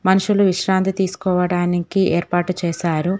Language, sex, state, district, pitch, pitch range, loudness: Telugu, female, Telangana, Hyderabad, 185 Hz, 175-190 Hz, -19 LUFS